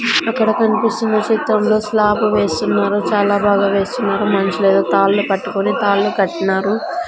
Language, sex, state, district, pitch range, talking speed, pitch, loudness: Telugu, female, Andhra Pradesh, Sri Satya Sai, 200-220 Hz, 110 wpm, 210 Hz, -16 LUFS